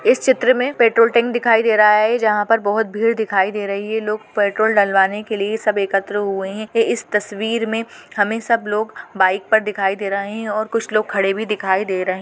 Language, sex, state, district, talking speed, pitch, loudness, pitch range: Hindi, female, Goa, North and South Goa, 230 wpm, 215 Hz, -18 LUFS, 200-225 Hz